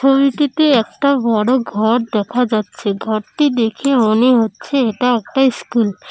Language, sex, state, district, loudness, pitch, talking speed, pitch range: Bengali, female, West Bengal, Cooch Behar, -15 LUFS, 240 Hz, 140 wpm, 220-270 Hz